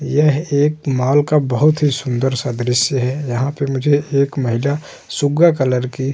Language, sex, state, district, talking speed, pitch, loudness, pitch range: Hindi, male, Uttar Pradesh, Hamirpur, 185 wpm, 140 Hz, -17 LUFS, 130-145 Hz